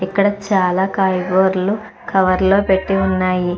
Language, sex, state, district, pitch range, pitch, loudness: Telugu, female, Andhra Pradesh, Chittoor, 185-195 Hz, 190 Hz, -16 LUFS